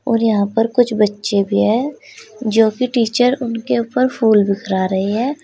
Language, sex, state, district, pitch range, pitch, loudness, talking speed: Hindi, female, Uttar Pradesh, Saharanpur, 205-245 Hz, 225 Hz, -16 LUFS, 175 wpm